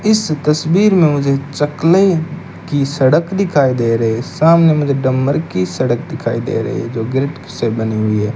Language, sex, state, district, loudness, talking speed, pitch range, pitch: Hindi, male, Rajasthan, Bikaner, -15 LUFS, 185 wpm, 115-160 Hz, 140 Hz